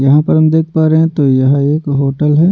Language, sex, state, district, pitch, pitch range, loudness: Hindi, male, Bihar, Patna, 150 Hz, 140-160 Hz, -11 LUFS